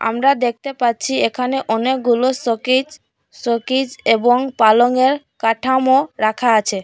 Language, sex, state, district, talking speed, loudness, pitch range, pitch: Bengali, female, Assam, Hailakandi, 105 wpm, -16 LUFS, 230-265 Hz, 250 Hz